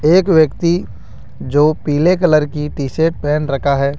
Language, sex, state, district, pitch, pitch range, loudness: Hindi, male, Rajasthan, Jaipur, 150 Hz, 145-165 Hz, -15 LUFS